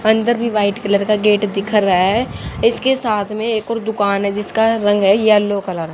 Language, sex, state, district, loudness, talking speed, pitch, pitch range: Hindi, female, Haryana, Jhajjar, -16 LUFS, 220 wpm, 210 Hz, 200-220 Hz